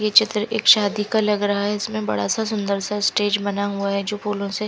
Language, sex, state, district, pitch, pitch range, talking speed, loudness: Hindi, female, Punjab, Fazilka, 205 Hz, 200-210 Hz, 270 wpm, -20 LUFS